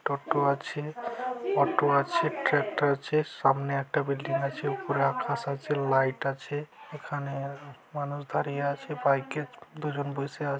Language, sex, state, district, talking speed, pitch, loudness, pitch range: Bengali, male, West Bengal, Malda, 140 wpm, 140 Hz, -29 LUFS, 140-150 Hz